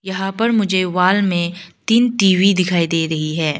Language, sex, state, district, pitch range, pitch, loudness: Hindi, female, Arunachal Pradesh, Lower Dibang Valley, 170-195 Hz, 185 Hz, -16 LUFS